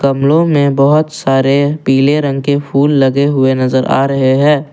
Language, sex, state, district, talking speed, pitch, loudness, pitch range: Hindi, male, Assam, Kamrup Metropolitan, 180 wpm, 140 Hz, -11 LUFS, 135-145 Hz